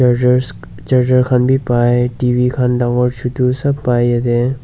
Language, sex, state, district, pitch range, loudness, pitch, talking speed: Nagamese, male, Nagaland, Dimapur, 120-125 Hz, -14 LUFS, 125 Hz, 155 wpm